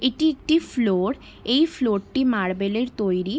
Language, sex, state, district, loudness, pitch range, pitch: Bengali, female, West Bengal, Jalpaiguri, -23 LUFS, 200-290 Hz, 245 Hz